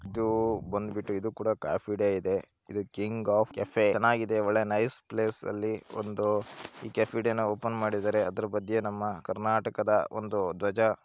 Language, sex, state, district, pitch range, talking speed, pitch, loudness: Kannada, male, Karnataka, Mysore, 105-110 Hz, 105 wpm, 110 Hz, -30 LUFS